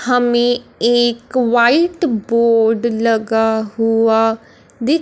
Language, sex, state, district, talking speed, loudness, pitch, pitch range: Hindi, male, Punjab, Fazilka, 85 wpm, -15 LUFS, 235 Hz, 225-245 Hz